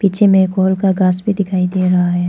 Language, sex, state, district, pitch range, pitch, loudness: Hindi, female, Arunachal Pradesh, Papum Pare, 185-195 Hz, 190 Hz, -14 LUFS